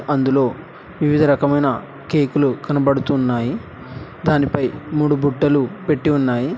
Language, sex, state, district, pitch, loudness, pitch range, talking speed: Telugu, male, Telangana, Hyderabad, 145 Hz, -18 LUFS, 135-150 Hz, 100 wpm